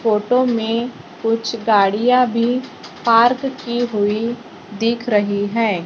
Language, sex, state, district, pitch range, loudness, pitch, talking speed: Hindi, female, Maharashtra, Gondia, 210-240 Hz, -18 LUFS, 230 Hz, 110 wpm